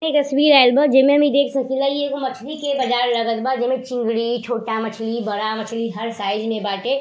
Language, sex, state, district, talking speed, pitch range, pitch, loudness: Bhojpuri, female, Uttar Pradesh, Ghazipur, 230 wpm, 225-275 Hz, 245 Hz, -19 LUFS